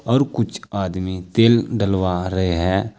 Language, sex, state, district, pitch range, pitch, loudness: Hindi, male, Uttar Pradesh, Saharanpur, 95-115 Hz, 95 Hz, -20 LUFS